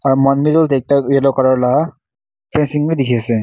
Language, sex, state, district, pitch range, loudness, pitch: Nagamese, male, Nagaland, Kohima, 130-145 Hz, -15 LUFS, 135 Hz